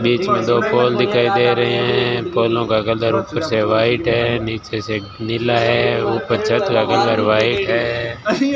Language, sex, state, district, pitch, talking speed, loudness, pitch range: Hindi, male, Rajasthan, Bikaner, 115 Hz, 175 wpm, -17 LUFS, 110-120 Hz